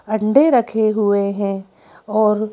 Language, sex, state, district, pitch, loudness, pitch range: Hindi, female, Madhya Pradesh, Bhopal, 215 Hz, -17 LUFS, 200-220 Hz